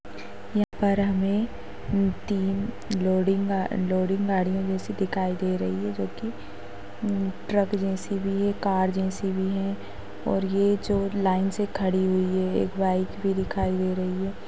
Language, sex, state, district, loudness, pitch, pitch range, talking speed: Hindi, female, Maharashtra, Sindhudurg, -26 LUFS, 190 Hz, 185-200 Hz, 155 wpm